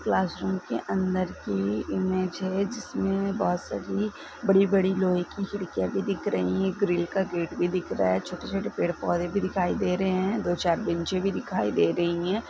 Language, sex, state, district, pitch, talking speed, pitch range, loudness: Hindi, female, Bihar, East Champaran, 185 Hz, 195 wpm, 175-195 Hz, -27 LUFS